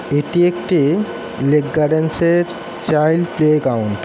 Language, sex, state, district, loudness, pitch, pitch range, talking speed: Bengali, male, West Bengal, Kolkata, -16 LUFS, 155 Hz, 145-170 Hz, 135 wpm